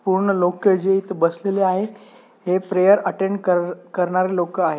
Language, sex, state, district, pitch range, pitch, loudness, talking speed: Marathi, male, Maharashtra, Dhule, 180-200 Hz, 190 Hz, -20 LUFS, 165 wpm